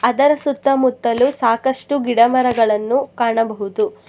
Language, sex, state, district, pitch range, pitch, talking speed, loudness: Kannada, female, Karnataka, Bangalore, 225-270 Hz, 245 Hz, 90 wpm, -17 LUFS